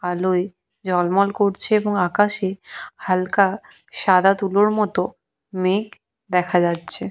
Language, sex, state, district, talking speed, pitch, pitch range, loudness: Bengali, female, West Bengal, Purulia, 100 wpm, 190 Hz, 180-200 Hz, -20 LUFS